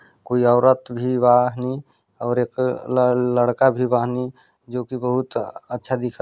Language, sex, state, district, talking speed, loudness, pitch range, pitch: Hindi, male, Chhattisgarh, Balrampur, 165 wpm, -20 LUFS, 125-130 Hz, 125 Hz